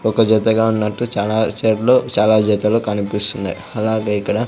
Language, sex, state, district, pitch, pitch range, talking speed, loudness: Telugu, male, Andhra Pradesh, Sri Satya Sai, 110 Hz, 105-110 Hz, 120 wpm, -17 LUFS